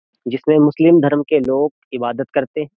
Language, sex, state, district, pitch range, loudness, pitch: Hindi, male, Uttar Pradesh, Jyotiba Phule Nagar, 130-155 Hz, -16 LUFS, 145 Hz